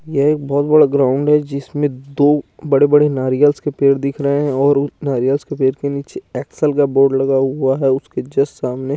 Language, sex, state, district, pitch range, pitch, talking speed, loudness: Hindi, male, Chandigarh, Chandigarh, 135-145 Hz, 140 Hz, 215 wpm, -16 LUFS